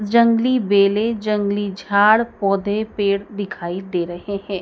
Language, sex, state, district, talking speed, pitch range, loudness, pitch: Hindi, female, Madhya Pradesh, Dhar, 130 wpm, 195-215 Hz, -19 LUFS, 205 Hz